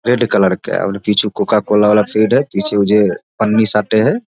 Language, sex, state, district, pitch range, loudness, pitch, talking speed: Maithili, male, Bihar, Samastipur, 105-110 Hz, -14 LUFS, 105 Hz, 210 wpm